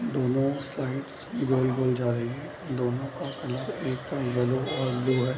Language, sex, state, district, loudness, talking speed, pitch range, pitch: Hindi, male, Bihar, Bhagalpur, -28 LUFS, 145 wpm, 125-135 Hz, 130 Hz